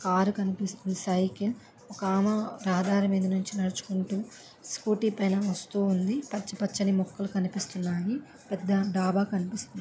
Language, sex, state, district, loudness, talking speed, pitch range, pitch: Telugu, female, Andhra Pradesh, Guntur, -29 LUFS, 115 wpm, 190-205 Hz, 195 Hz